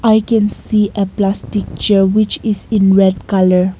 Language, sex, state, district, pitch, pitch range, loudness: English, female, Nagaland, Kohima, 200 Hz, 195-215 Hz, -14 LUFS